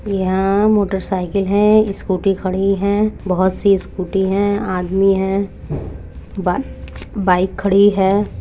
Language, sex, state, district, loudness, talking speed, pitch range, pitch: Hindi, female, Uttar Pradesh, Budaun, -17 LUFS, 115 wpm, 190-200 Hz, 195 Hz